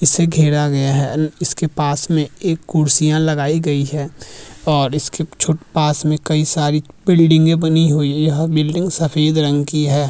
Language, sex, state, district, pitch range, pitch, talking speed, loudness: Hindi, male, Uttarakhand, Tehri Garhwal, 150-160 Hz, 155 Hz, 170 wpm, -16 LUFS